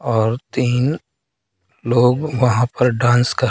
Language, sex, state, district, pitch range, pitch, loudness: Hindi, male, Madhya Pradesh, Katni, 120-130 Hz, 125 Hz, -17 LUFS